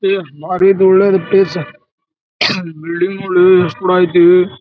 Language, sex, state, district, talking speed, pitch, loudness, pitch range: Kannada, male, Karnataka, Dharwad, 130 wpm, 185 Hz, -12 LUFS, 180-195 Hz